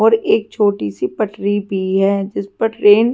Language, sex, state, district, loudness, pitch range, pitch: Hindi, female, Delhi, New Delhi, -17 LUFS, 195-215 Hz, 205 Hz